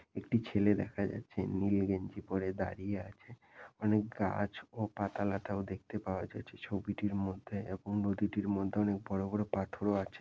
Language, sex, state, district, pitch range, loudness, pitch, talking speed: Bengali, male, West Bengal, Jalpaiguri, 95-105 Hz, -36 LUFS, 100 Hz, 160 wpm